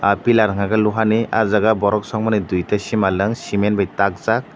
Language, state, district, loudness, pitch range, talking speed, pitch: Kokborok, Tripura, Dhalai, -18 LUFS, 100-110 Hz, 170 wpm, 105 Hz